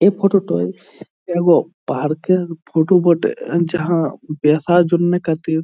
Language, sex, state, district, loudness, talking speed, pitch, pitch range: Bengali, male, West Bengal, Jhargram, -17 LUFS, 140 wpm, 170 Hz, 155-175 Hz